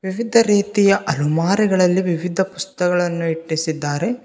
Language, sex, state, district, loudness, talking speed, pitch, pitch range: Kannada, male, Karnataka, Bidar, -18 LUFS, 85 wpm, 185 Hz, 165-200 Hz